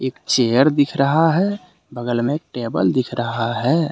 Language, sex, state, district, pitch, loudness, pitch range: Hindi, male, Jharkhand, Deoghar, 130 Hz, -19 LUFS, 120-155 Hz